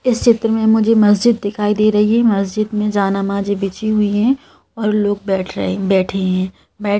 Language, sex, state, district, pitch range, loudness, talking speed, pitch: Hindi, female, Madhya Pradesh, Bhopal, 195-220 Hz, -16 LUFS, 190 wpm, 210 Hz